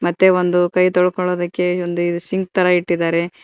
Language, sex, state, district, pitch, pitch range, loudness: Kannada, female, Karnataka, Koppal, 180 Hz, 175-180 Hz, -17 LUFS